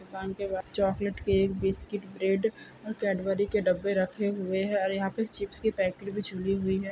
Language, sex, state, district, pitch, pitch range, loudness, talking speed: Hindi, female, Bihar, Saharsa, 195 Hz, 190-205 Hz, -30 LUFS, 210 wpm